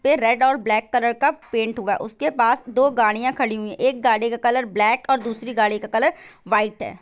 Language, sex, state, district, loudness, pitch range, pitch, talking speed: Hindi, female, Bihar, Gopalganj, -20 LUFS, 220-260 Hz, 235 Hz, 250 wpm